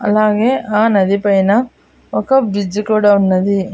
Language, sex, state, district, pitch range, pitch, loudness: Telugu, female, Andhra Pradesh, Annamaya, 200-215 Hz, 205 Hz, -14 LUFS